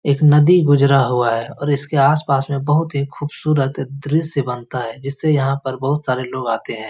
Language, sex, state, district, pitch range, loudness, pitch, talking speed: Hindi, male, Bihar, Lakhisarai, 130-145 Hz, -17 LUFS, 140 Hz, 200 wpm